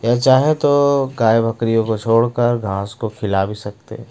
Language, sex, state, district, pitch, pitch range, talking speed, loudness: Hindi, male, Odisha, Malkangiri, 115 Hz, 110-125 Hz, 175 wpm, -17 LUFS